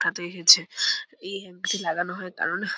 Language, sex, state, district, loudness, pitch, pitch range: Bengali, female, West Bengal, Purulia, -23 LUFS, 185 Hz, 175-205 Hz